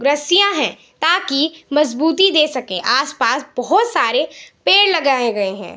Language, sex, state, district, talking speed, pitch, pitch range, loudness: Hindi, female, Bihar, Saharsa, 145 wpm, 300 Hz, 255-345 Hz, -16 LUFS